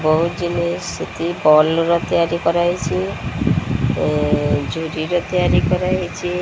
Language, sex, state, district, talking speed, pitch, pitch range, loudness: Odia, female, Odisha, Sambalpur, 105 wpm, 170 Hz, 165-175 Hz, -18 LUFS